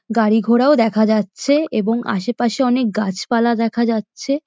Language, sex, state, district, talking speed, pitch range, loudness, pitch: Bengali, female, West Bengal, Dakshin Dinajpur, 120 wpm, 220-245 Hz, -17 LUFS, 230 Hz